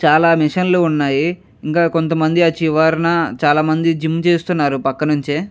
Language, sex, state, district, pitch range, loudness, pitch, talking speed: Telugu, male, Andhra Pradesh, Chittoor, 150-170 Hz, -16 LUFS, 160 Hz, 175 wpm